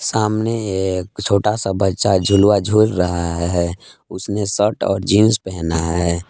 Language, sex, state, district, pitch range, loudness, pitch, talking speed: Hindi, male, Jharkhand, Palamu, 90-105 Hz, -17 LUFS, 95 Hz, 145 wpm